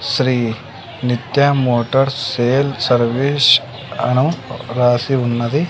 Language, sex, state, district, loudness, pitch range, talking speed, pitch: Telugu, male, Andhra Pradesh, Sri Satya Sai, -16 LUFS, 120-135 Hz, 85 wpm, 125 Hz